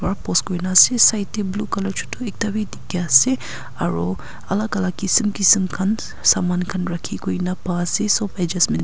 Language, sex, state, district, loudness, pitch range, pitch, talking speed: Nagamese, female, Nagaland, Kohima, -19 LUFS, 175-205 Hz, 190 Hz, 185 wpm